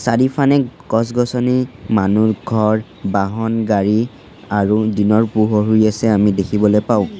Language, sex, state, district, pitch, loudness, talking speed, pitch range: Assamese, male, Assam, Sonitpur, 110 Hz, -16 LUFS, 115 wpm, 105-120 Hz